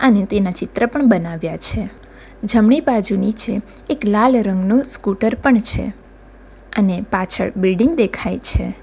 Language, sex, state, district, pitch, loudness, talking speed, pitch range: Gujarati, female, Gujarat, Valsad, 215 Hz, -17 LUFS, 135 wpm, 195-245 Hz